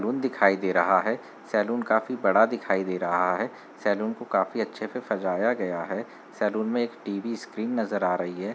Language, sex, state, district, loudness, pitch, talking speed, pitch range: Hindi, male, Uttar Pradesh, Muzaffarnagar, -26 LUFS, 105 Hz, 195 wpm, 95-115 Hz